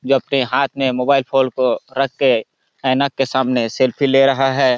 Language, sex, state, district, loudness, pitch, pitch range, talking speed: Hindi, male, Chhattisgarh, Balrampur, -17 LUFS, 135 Hz, 130-135 Hz, 200 wpm